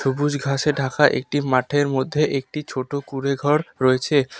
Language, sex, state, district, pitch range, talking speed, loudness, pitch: Bengali, male, West Bengal, Alipurduar, 135-145 Hz, 135 wpm, -21 LUFS, 140 Hz